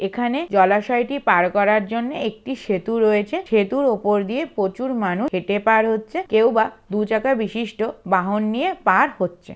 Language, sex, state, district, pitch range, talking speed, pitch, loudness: Bengali, male, West Bengal, Jalpaiguri, 205-245 Hz, 170 wpm, 220 Hz, -20 LUFS